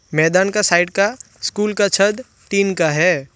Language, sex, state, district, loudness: Hindi, male, West Bengal, Alipurduar, -17 LUFS